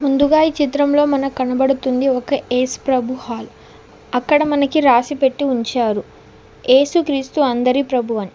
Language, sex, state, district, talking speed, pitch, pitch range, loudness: Telugu, female, Telangana, Mahabubabad, 110 wpm, 265 Hz, 250-285 Hz, -17 LUFS